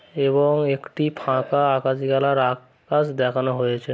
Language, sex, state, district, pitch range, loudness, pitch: Bengali, male, West Bengal, Kolkata, 130-145 Hz, -21 LUFS, 135 Hz